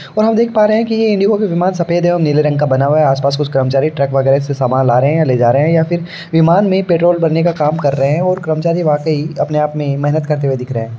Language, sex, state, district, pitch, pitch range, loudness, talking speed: Hindi, male, Uttar Pradesh, Varanasi, 155 Hz, 140-175 Hz, -13 LUFS, 335 wpm